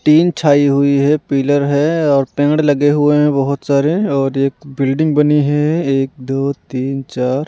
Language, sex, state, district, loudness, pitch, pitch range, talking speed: Hindi, male, Delhi, New Delhi, -14 LUFS, 145 Hz, 135-150 Hz, 175 wpm